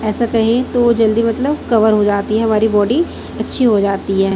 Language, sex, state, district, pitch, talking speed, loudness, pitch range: Hindi, female, Chhattisgarh, Raipur, 225 Hz, 205 wpm, -14 LUFS, 210-235 Hz